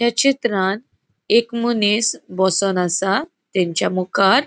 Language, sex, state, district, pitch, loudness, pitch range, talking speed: Konkani, female, Goa, North and South Goa, 200 Hz, -18 LUFS, 190-235 Hz, 105 wpm